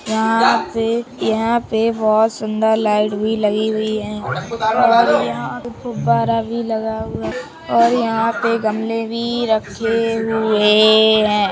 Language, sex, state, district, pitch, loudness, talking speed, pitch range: Hindi, male, Uttar Pradesh, Jalaun, 220 Hz, -17 LUFS, 145 wpm, 215-230 Hz